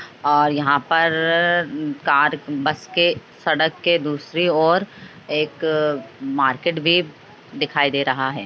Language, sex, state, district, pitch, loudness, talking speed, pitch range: Hindi, female, Bihar, Jamui, 155 Hz, -19 LUFS, 125 wpm, 145-170 Hz